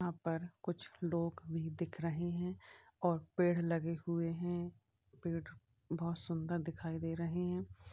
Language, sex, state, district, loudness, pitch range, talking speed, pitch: Hindi, male, Uttar Pradesh, Varanasi, -40 LUFS, 165-175 Hz, 145 wpm, 170 Hz